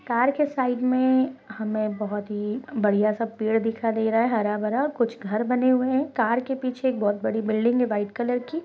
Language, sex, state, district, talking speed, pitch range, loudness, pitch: Hindi, female, Chhattisgarh, Bastar, 210 wpm, 215-255 Hz, -24 LUFS, 235 Hz